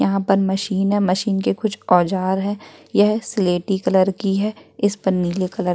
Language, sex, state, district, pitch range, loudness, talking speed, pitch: Hindi, female, Uttarakhand, Tehri Garhwal, 185-205 Hz, -19 LUFS, 190 wpm, 195 Hz